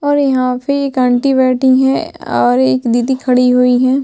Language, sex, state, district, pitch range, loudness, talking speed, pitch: Hindi, female, Chhattisgarh, Sukma, 250-265 Hz, -13 LUFS, 195 wpm, 255 Hz